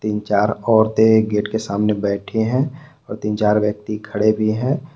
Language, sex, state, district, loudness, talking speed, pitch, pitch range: Hindi, male, Jharkhand, Palamu, -18 LUFS, 180 wpm, 110 Hz, 105-110 Hz